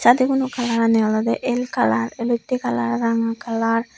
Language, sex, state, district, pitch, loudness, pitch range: Chakma, female, Tripura, Unakoti, 230 Hz, -20 LUFS, 225-245 Hz